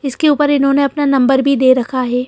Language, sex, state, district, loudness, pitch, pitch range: Hindi, female, Madhya Pradesh, Bhopal, -13 LUFS, 275 Hz, 255-285 Hz